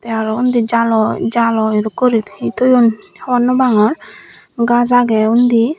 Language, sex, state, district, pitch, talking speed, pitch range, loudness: Chakma, female, Tripura, Dhalai, 235 Hz, 145 wpm, 220-250 Hz, -14 LUFS